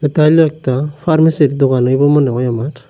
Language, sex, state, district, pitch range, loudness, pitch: Bengali, male, Tripura, Unakoti, 130-155 Hz, -13 LUFS, 145 Hz